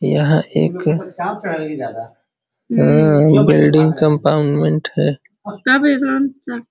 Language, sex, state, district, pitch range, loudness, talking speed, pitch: Hindi, male, Uttar Pradesh, Varanasi, 145-205 Hz, -15 LUFS, 45 wpm, 155 Hz